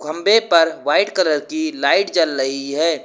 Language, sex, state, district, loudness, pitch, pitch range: Hindi, male, Uttar Pradesh, Lucknow, -17 LUFS, 165 Hz, 150-200 Hz